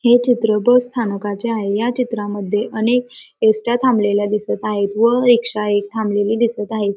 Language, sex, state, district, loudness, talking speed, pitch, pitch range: Marathi, female, Maharashtra, Pune, -17 LUFS, 145 wpm, 220 Hz, 205-240 Hz